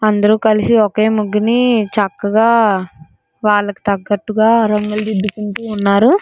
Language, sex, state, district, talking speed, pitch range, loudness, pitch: Telugu, female, Andhra Pradesh, Srikakulam, 85 wpm, 205-220 Hz, -14 LUFS, 210 Hz